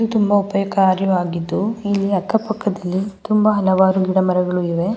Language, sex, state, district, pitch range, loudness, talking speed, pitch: Kannada, female, Karnataka, Mysore, 185-205 Hz, -18 LUFS, 120 wpm, 195 Hz